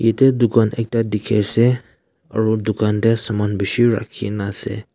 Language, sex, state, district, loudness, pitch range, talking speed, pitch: Nagamese, male, Nagaland, Kohima, -18 LUFS, 105-115 Hz, 135 wpm, 110 Hz